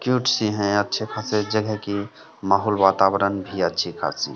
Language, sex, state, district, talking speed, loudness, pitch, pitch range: Hindi, male, Bihar, Samastipur, 180 wpm, -22 LUFS, 105 Hz, 100-110 Hz